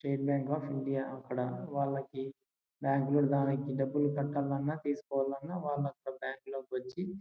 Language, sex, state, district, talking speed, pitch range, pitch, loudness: Telugu, male, Andhra Pradesh, Anantapur, 115 wpm, 135-145 Hz, 140 Hz, -35 LUFS